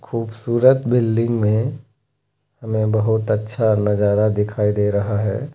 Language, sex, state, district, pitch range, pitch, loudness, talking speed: Hindi, male, Uttar Pradesh, Lucknow, 105-120 Hz, 110 Hz, -19 LUFS, 120 wpm